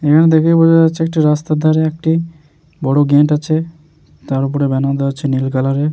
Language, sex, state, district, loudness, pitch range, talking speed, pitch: Bengali, male, West Bengal, Jalpaiguri, -14 LUFS, 140-160 Hz, 205 wpm, 155 Hz